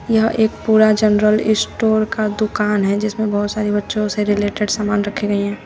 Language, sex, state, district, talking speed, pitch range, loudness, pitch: Hindi, female, Uttar Pradesh, Shamli, 190 wpm, 205-215 Hz, -17 LUFS, 210 Hz